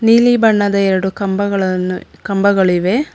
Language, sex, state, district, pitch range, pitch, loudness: Kannada, female, Karnataka, Bangalore, 190-220 Hz, 200 Hz, -14 LUFS